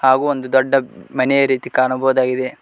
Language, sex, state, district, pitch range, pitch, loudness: Kannada, male, Karnataka, Koppal, 130-135 Hz, 130 Hz, -17 LUFS